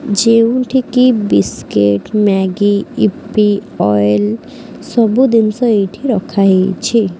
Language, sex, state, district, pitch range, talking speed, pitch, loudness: Odia, female, Odisha, Khordha, 195-240 Hz, 90 wpm, 210 Hz, -13 LUFS